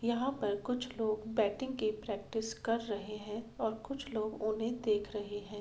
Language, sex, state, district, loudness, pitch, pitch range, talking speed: Hindi, female, Bihar, Gopalganj, -37 LUFS, 220 Hz, 210-230 Hz, 180 wpm